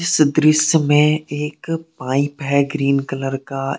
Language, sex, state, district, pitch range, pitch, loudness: Hindi, male, Jharkhand, Deoghar, 140-155 Hz, 145 Hz, -18 LUFS